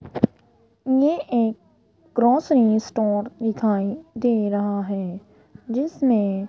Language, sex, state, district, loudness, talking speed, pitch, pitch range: Hindi, female, Rajasthan, Jaipur, -22 LUFS, 90 wpm, 220 Hz, 205-250 Hz